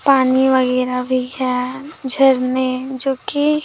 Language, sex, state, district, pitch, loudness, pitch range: Hindi, female, Chhattisgarh, Raipur, 260 Hz, -17 LUFS, 255-270 Hz